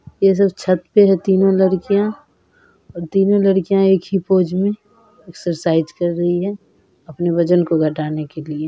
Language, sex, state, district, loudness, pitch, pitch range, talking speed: Hindi, female, Bihar, Purnia, -17 LUFS, 185 Hz, 170-195 Hz, 150 wpm